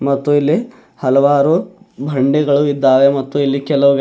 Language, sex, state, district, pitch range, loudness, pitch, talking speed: Kannada, male, Karnataka, Bidar, 135-145 Hz, -14 LUFS, 140 Hz, 135 wpm